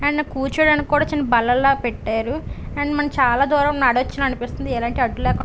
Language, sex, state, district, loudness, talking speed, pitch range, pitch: Telugu, female, Andhra Pradesh, Visakhapatnam, -19 LUFS, 175 wpm, 245-295 Hz, 275 Hz